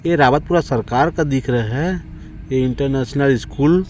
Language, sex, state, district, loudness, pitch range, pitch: Hindi, male, Chhattisgarh, Raipur, -18 LUFS, 130-170 Hz, 140 Hz